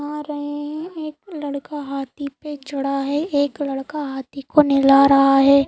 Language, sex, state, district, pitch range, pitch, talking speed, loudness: Hindi, female, Madhya Pradesh, Bhopal, 275-300 Hz, 285 Hz, 170 wpm, -20 LUFS